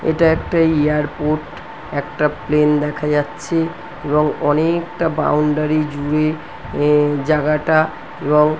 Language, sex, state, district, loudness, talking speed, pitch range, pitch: Bengali, female, West Bengal, North 24 Parganas, -18 LUFS, 100 wpm, 150-160 Hz, 150 Hz